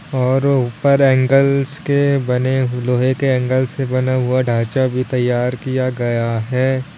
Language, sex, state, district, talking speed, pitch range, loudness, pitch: Hindi, male, Uttar Pradesh, Lalitpur, 145 wpm, 125-135 Hz, -17 LUFS, 130 Hz